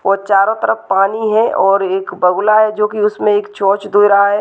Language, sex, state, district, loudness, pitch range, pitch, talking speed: Hindi, female, Maharashtra, Nagpur, -13 LUFS, 195-210 Hz, 200 Hz, 230 wpm